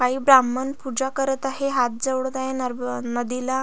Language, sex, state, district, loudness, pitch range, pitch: Marathi, female, Maharashtra, Solapur, -22 LUFS, 250-265 Hz, 260 Hz